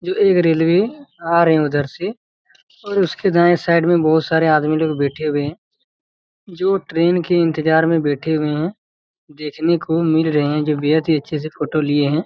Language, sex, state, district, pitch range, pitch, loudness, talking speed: Hindi, male, Chhattisgarh, Raigarh, 150-175 Hz, 160 Hz, -17 LUFS, 185 wpm